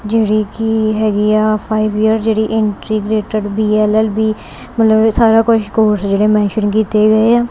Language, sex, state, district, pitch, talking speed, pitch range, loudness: Punjabi, female, Punjab, Kapurthala, 215 Hz, 175 wpm, 215-220 Hz, -13 LUFS